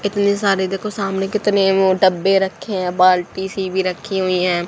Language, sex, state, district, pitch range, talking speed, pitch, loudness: Hindi, female, Haryana, Charkhi Dadri, 185-195 Hz, 190 wpm, 190 Hz, -17 LUFS